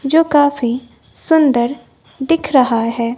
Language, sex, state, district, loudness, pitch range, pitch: Hindi, female, Bihar, West Champaran, -15 LUFS, 240-300 Hz, 270 Hz